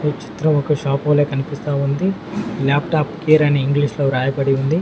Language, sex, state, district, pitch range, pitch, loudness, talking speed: Telugu, male, Telangana, Mahabubabad, 140-150 Hz, 145 Hz, -18 LUFS, 175 wpm